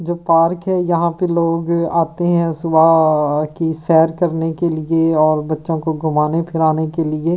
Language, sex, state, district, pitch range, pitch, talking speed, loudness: Hindi, female, Delhi, New Delhi, 160-170 Hz, 165 Hz, 170 wpm, -16 LUFS